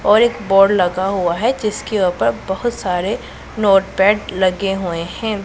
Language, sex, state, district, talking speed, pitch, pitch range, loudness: Hindi, female, Punjab, Pathankot, 155 wpm, 195 Hz, 180-210 Hz, -17 LUFS